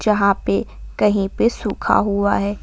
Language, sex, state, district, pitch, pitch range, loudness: Hindi, female, Jharkhand, Garhwa, 205 Hz, 200-210 Hz, -19 LUFS